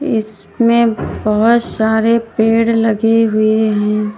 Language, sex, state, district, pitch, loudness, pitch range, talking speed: Hindi, female, Uttar Pradesh, Lalitpur, 220 Hz, -14 LUFS, 215-230 Hz, 100 wpm